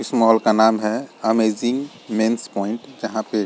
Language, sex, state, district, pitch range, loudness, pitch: Hindi, male, Chhattisgarh, Rajnandgaon, 110-115 Hz, -20 LUFS, 110 Hz